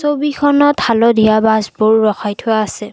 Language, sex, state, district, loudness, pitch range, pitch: Assamese, female, Assam, Kamrup Metropolitan, -13 LUFS, 215-285 Hz, 220 Hz